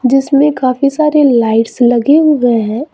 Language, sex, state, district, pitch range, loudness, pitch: Hindi, female, Chhattisgarh, Raipur, 240-290 Hz, -11 LUFS, 265 Hz